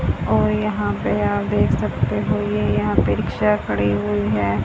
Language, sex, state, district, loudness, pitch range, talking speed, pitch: Hindi, female, Haryana, Charkhi Dadri, -20 LUFS, 100-105 Hz, 180 wpm, 105 Hz